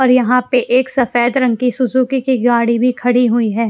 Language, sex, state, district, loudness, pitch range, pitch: Hindi, female, Bihar, Kaimur, -14 LUFS, 240-255 Hz, 250 Hz